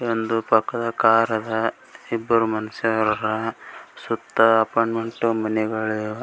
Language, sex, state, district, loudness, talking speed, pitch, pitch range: Kannada, male, Karnataka, Gulbarga, -22 LUFS, 105 wpm, 115 Hz, 110-115 Hz